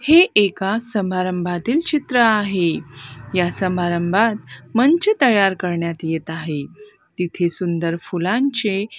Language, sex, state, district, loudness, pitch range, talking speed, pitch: Marathi, female, Maharashtra, Gondia, -19 LUFS, 175-240 Hz, 100 wpm, 185 Hz